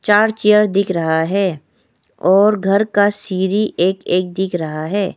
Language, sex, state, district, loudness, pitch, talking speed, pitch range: Hindi, female, Arunachal Pradesh, Lower Dibang Valley, -16 LUFS, 195 Hz, 160 wpm, 180-205 Hz